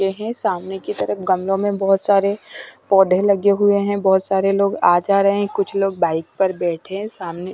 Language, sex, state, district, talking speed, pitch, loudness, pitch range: Hindi, female, Punjab, Pathankot, 205 wpm, 195 Hz, -18 LUFS, 190-200 Hz